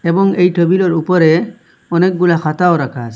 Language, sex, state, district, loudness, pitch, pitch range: Bengali, male, Assam, Hailakandi, -13 LUFS, 175 Hz, 165-185 Hz